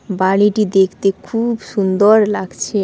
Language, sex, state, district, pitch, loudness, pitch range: Bengali, female, West Bengal, Paschim Medinipur, 200 Hz, -15 LUFS, 190-215 Hz